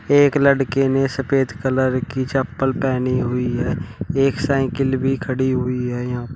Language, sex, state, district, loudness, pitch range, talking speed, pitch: Hindi, male, Uttar Pradesh, Shamli, -20 LUFS, 125-135 Hz, 160 wpm, 130 Hz